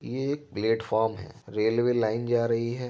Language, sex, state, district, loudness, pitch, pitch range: Hindi, male, Uttar Pradesh, Jyotiba Phule Nagar, -27 LUFS, 115 Hz, 110-120 Hz